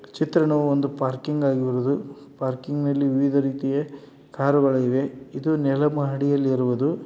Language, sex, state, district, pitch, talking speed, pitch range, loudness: Kannada, male, Karnataka, Dharwad, 140 Hz, 130 wpm, 135-145 Hz, -23 LUFS